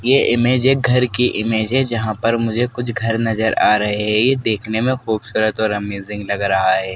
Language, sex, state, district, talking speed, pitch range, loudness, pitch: Hindi, male, Madhya Pradesh, Dhar, 205 wpm, 105-120 Hz, -17 LUFS, 110 Hz